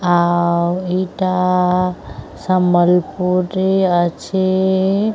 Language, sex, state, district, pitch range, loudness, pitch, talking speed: Odia, female, Odisha, Sambalpur, 175-190 Hz, -16 LUFS, 180 Hz, 60 wpm